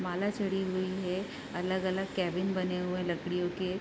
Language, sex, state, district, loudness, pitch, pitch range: Hindi, female, Bihar, Gopalganj, -33 LUFS, 185 Hz, 180-190 Hz